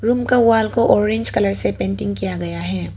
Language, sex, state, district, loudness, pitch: Hindi, female, Arunachal Pradesh, Papum Pare, -18 LUFS, 150 Hz